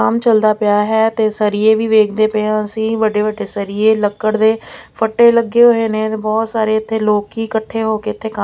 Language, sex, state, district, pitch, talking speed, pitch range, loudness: Punjabi, female, Punjab, Pathankot, 220 Hz, 205 wpm, 215-220 Hz, -15 LUFS